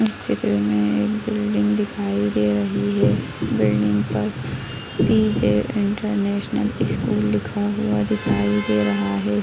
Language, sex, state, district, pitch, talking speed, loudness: Hindi, female, Bihar, Bhagalpur, 105 Hz, 125 wpm, -21 LUFS